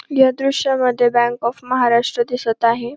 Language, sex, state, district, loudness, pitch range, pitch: Marathi, female, Maharashtra, Pune, -17 LUFS, 235-260 Hz, 245 Hz